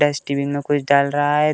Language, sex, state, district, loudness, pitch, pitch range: Hindi, male, Uttar Pradesh, Deoria, -19 LUFS, 145 Hz, 140-145 Hz